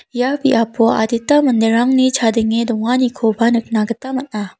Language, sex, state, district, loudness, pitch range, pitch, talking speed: Garo, female, Meghalaya, South Garo Hills, -16 LUFS, 225-255 Hz, 235 Hz, 115 wpm